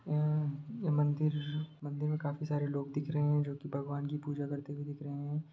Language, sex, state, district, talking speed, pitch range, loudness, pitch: Hindi, male, Bihar, Sitamarhi, 215 wpm, 145-150 Hz, -36 LUFS, 145 Hz